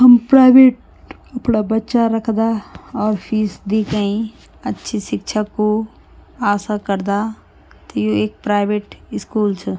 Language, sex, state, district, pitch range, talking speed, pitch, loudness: Garhwali, female, Uttarakhand, Tehri Garhwal, 205-225 Hz, 125 wpm, 215 Hz, -17 LUFS